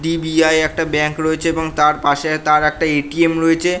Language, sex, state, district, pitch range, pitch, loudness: Bengali, male, West Bengal, North 24 Parganas, 150-165 Hz, 160 Hz, -16 LUFS